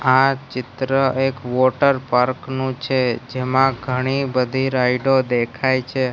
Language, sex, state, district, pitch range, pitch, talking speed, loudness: Gujarati, male, Gujarat, Gandhinagar, 125-135 Hz, 130 Hz, 115 wpm, -19 LUFS